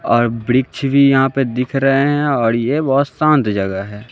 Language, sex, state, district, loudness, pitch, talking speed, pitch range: Hindi, male, Bihar, West Champaran, -15 LUFS, 135 Hz, 205 wpm, 115-140 Hz